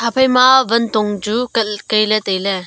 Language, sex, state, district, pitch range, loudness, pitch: Wancho, female, Arunachal Pradesh, Longding, 210-240 Hz, -15 LUFS, 215 Hz